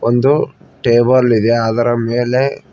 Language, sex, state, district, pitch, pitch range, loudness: Kannada, male, Karnataka, Koppal, 120 Hz, 115-130 Hz, -14 LUFS